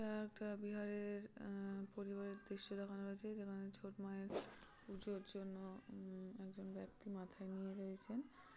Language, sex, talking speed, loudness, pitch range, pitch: Bengali, female, 135 wpm, -49 LUFS, 195-205 Hz, 200 Hz